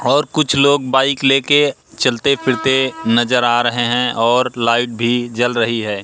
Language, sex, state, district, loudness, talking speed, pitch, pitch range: Hindi, male, Madhya Pradesh, Katni, -15 LUFS, 180 wpm, 125 Hz, 120-135 Hz